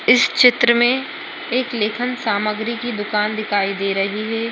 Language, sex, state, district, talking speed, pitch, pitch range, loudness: Hindi, female, Rajasthan, Churu, 160 wpm, 225 Hz, 210-245 Hz, -18 LUFS